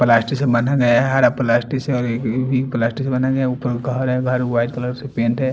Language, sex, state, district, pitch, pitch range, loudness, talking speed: Hindi, male, Punjab, Fazilka, 125 Hz, 120-130 Hz, -19 LUFS, 270 wpm